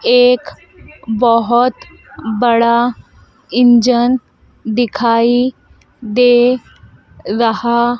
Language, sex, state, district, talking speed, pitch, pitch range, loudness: Hindi, female, Madhya Pradesh, Dhar, 50 wpm, 240 Hz, 230-245 Hz, -13 LUFS